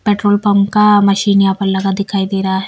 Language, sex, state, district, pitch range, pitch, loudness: Hindi, female, Bihar, Patna, 195-205 Hz, 200 Hz, -13 LUFS